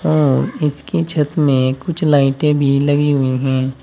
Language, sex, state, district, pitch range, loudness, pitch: Hindi, male, Uttar Pradesh, Saharanpur, 135-150 Hz, -16 LUFS, 145 Hz